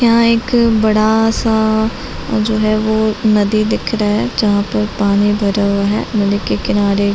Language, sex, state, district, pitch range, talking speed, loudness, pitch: Hindi, female, Chhattisgarh, Bilaspur, 205-220 Hz, 170 wpm, -14 LUFS, 215 Hz